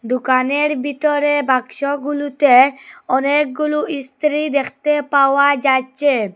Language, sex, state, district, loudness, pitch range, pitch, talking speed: Bengali, female, Assam, Hailakandi, -16 LUFS, 265-295 Hz, 285 Hz, 75 wpm